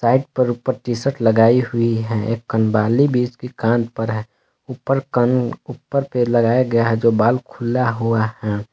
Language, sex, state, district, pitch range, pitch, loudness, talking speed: Hindi, male, Jharkhand, Palamu, 115-125 Hz, 120 Hz, -18 LUFS, 170 wpm